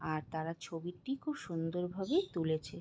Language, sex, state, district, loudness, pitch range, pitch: Bengali, female, West Bengal, Jalpaiguri, -38 LUFS, 160-195 Hz, 170 Hz